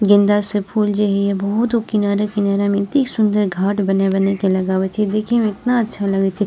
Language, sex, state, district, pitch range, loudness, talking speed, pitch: Maithili, female, Bihar, Purnia, 195-210 Hz, -17 LUFS, 215 wpm, 205 Hz